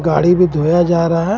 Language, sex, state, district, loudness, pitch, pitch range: Hindi, male, Jharkhand, Ranchi, -13 LUFS, 170 Hz, 165-175 Hz